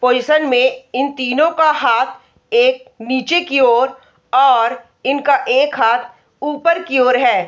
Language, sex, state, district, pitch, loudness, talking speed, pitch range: Hindi, female, Bihar, Araria, 270 Hz, -15 LUFS, 145 wpm, 250-305 Hz